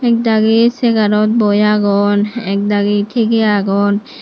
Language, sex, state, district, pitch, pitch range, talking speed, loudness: Chakma, female, Tripura, Unakoti, 210 Hz, 205-225 Hz, 115 wpm, -13 LUFS